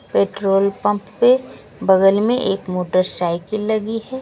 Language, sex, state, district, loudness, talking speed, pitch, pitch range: Hindi, female, Bihar, West Champaran, -18 LUFS, 130 wpm, 200 Hz, 190-220 Hz